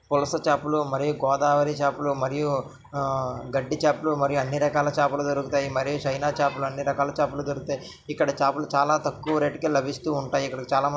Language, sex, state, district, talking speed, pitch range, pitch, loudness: Telugu, male, Karnataka, Dharwad, 175 wpm, 135-145 Hz, 140 Hz, -25 LUFS